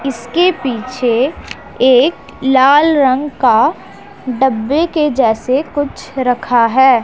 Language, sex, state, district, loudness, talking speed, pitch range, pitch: Hindi, female, Punjab, Pathankot, -13 LUFS, 100 wpm, 250-290 Hz, 265 Hz